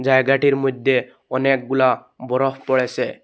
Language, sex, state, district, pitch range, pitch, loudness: Bengali, male, Assam, Hailakandi, 130-135 Hz, 130 Hz, -19 LUFS